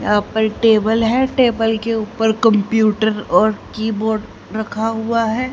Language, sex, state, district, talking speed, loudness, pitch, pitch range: Hindi, female, Haryana, Rohtak, 140 wpm, -17 LUFS, 220 Hz, 215-225 Hz